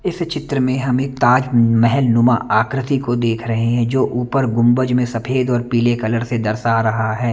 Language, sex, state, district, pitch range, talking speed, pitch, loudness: Hindi, male, Chandigarh, Chandigarh, 115-130 Hz, 205 wpm, 120 Hz, -17 LUFS